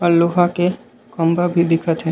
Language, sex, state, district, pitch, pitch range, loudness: Chhattisgarhi, male, Chhattisgarh, Raigarh, 170 Hz, 165-175 Hz, -17 LUFS